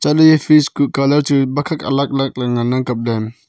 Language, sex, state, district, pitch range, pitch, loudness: Wancho, male, Arunachal Pradesh, Longding, 125-150 Hz, 140 Hz, -15 LUFS